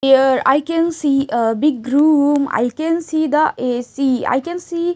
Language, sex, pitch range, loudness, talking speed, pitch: English, female, 260-315 Hz, -17 LUFS, 195 wpm, 285 Hz